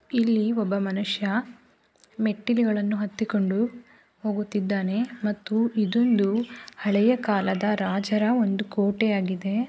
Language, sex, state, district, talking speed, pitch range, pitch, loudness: Kannada, female, Karnataka, Raichur, 80 wpm, 200-230 Hz, 210 Hz, -25 LUFS